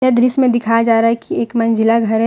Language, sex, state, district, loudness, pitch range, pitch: Hindi, female, Jharkhand, Deoghar, -14 LUFS, 230-245 Hz, 230 Hz